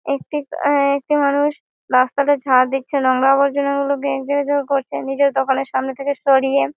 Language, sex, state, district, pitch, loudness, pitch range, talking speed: Bengali, female, West Bengal, Malda, 280 Hz, -18 LUFS, 270-285 Hz, 135 wpm